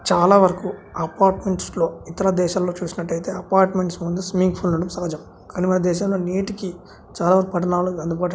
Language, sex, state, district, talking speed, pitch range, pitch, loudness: Telugu, male, Andhra Pradesh, Guntur, 145 wpm, 175-190 Hz, 180 Hz, -21 LUFS